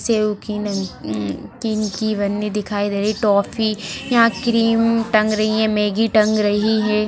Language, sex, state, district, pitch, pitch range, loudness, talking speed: Hindi, female, Rajasthan, Nagaur, 215 Hz, 205-220 Hz, -19 LUFS, 180 wpm